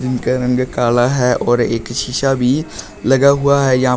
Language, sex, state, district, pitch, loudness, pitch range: Hindi, male, Uttar Pradesh, Shamli, 125 Hz, -15 LUFS, 120-135 Hz